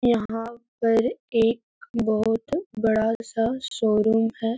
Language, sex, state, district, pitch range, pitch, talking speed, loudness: Hindi, female, Uttar Pradesh, Etah, 225-235 Hz, 225 Hz, 105 wpm, -24 LUFS